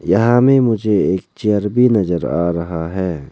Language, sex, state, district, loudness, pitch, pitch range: Hindi, male, Arunachal Pradesh, Lower Dibang Valley, -16 LUFS, 100 Hz, 85-115 Hz